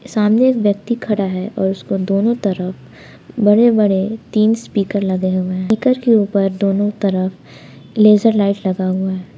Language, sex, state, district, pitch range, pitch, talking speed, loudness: Hindi, female, Jharkhand, Palamu, 190-220 Hz, 200 Hz, 165 wpm, -16 LUFS